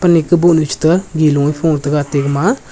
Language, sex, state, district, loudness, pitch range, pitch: Wancho, male, Arunachal Pradesh, Longding, -13 LUFS, 145-170 Hz, 155 Hz